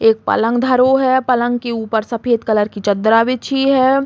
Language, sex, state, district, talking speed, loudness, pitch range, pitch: Bundeli, female, Uttar Pradesh, Hamirpur, 190 wpm, -15 LUFS, 225-260 Hz, 240 Hz